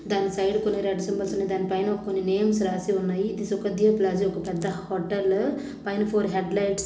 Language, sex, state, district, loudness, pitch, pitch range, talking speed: Telugu, female, Andhra Pradesh, Krishna, -26 LUFS, 195 Hz, 190-205 Hz, 190 wpm